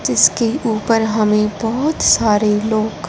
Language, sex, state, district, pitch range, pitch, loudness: Hindi, female, Punjab, Fazilka, 210-230 Hz, 220 Hz, -15 LUFS